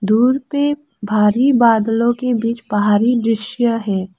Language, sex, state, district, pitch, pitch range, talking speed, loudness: Hindi, female, Arunachal Pradesh, Lower Dibang Valley, 230 Hz, 210-250 Hz, 130 wpm, -16 LUFS